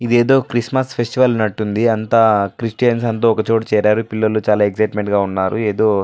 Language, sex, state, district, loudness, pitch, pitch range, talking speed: Telugu, male, Andhra Pradesh, Anantapur, -16 LUFS, 110 Hz, 105-120 Hz, 190 wpm